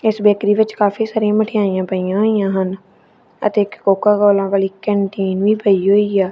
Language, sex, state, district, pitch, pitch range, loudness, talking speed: Punjabi, female, Punjab, Kapurthala, 205 Hz, 195-210 Hz, -16 LUFS, 180 wpm